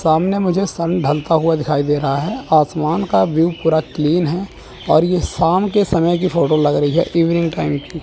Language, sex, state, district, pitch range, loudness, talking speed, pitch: Hindi, male, Chandigarh, Chandigarh, 155-180 Hz, -16 LUFS, 210 wpm, 165 Hz